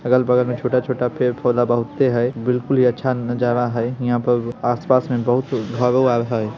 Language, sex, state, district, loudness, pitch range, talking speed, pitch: Hindi, male, Bihar, Samastipur, -19 LUFS, 120-125 Hz, 180 wpm, 125 Hz